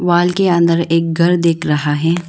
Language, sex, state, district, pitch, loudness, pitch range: Hindi, female, Arunachal Pradesh, Lower Dibang Valley, 170 Hz, -14 LUFS, 165-175 Hz